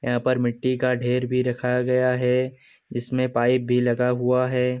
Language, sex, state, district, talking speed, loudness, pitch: Hindi, male, Bihar, Gopalganj, 200 wpm, -22 LUFS, 125 Hz